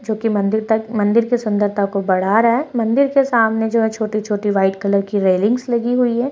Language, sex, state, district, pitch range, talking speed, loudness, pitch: Hindi, female, Bihar, Jahanabad, 205-235 Hz, 230 wpm, -17 LUFS, 220 Hz